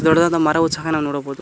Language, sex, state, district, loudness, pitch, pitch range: Kannada, male, Karnataka, Koppal, -18 LUFS, 160 Hz, 150-165 Hz